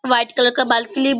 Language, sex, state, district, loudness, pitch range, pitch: Hindi, female, Bihar, Purnia, -15 LUFS, 235-270 Hz, 250 Hz